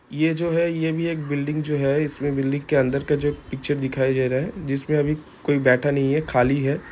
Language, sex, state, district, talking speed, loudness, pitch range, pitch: Hindi, male, Bihar, Gopalganj, 245 wpm, -22 LUFS, 135-150 Hz, 145 Hz